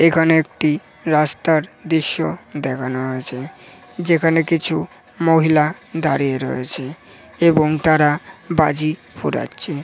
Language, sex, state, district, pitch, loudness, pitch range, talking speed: Bengali, male, West Bengal, Jhargram, 155 Hz, -18 LUFS, 140-165 Hz, 95 wpm